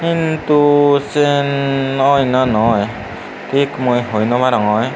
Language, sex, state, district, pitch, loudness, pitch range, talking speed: Chakma, male, Tripura, Unakoti, 135 Hz, -15 LUFS, 120-145 Hz, 120 wpm